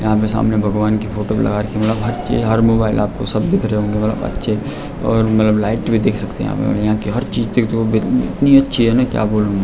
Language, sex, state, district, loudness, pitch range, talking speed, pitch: Hindi, male, Uttarakhand, Tehri Garhwal, -16 LUFS, 105-115 Hz, 250 wpm, 110 Hz